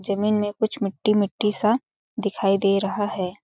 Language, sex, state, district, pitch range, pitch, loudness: Hindi, female, Chhattisgarh, Balrampur, 195-210 Hz, 205 Hz, -23 LUFS